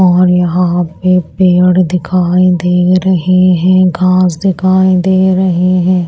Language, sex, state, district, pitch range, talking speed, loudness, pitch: Hindi, female, Maharashtra, Washim, 180-185 Hz, 130 wpm, -10 LUFS, 180 Hz